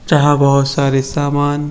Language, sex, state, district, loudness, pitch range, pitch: Hindi, male, Uttar Pradesh, Etah, -14 LUFS, 140-145 Hz, 145 Hz